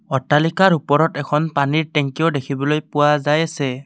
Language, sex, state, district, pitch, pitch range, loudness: Assamese, male, Assam, Kamrup Metropolitan, 150 Hz, 140-160 Hz, -18 LUFS